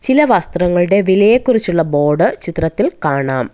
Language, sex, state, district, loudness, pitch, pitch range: Malayalam, female, Kerala, Kollam, -14 LUFS, 175 Hz, 160-215 Hz